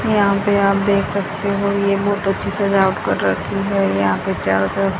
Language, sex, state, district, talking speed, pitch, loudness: Hindi, female, Haryana, Rohtak, 205 wpm, 195 Hz, -18 LUFS